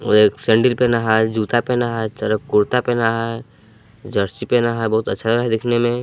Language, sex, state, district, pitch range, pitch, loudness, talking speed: Hindi, male, Jharkhand, Palamu, 110-120 Hz, 115 Hz, -18 LUFS, 200 wpm